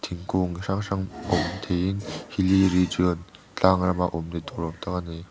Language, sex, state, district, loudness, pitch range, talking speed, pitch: Mizo, male, Mizoram, Aizawl, -25 LUFS, 85-95 Hz, 160 wpm, 90 Hz